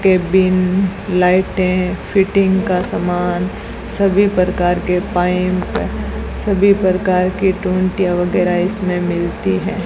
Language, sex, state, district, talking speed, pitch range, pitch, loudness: Hindi, female, Rajasthan, Bikaner, 105 wpm, 180-190 Hz, 185 Hz, -16 LUFS